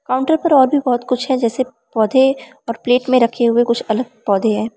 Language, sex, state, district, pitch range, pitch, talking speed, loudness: Hindi, female, Arunachal Pradesh, Lower Dibang Valley, 230-260 Hz, 245 Hz, 225 wpm, -16 LUFS